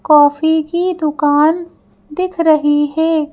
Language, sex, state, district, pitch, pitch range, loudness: Hindi, female, Madhya Pradesh, Bhopal, 315 Hz, 295-335 Hz, -14 LUFS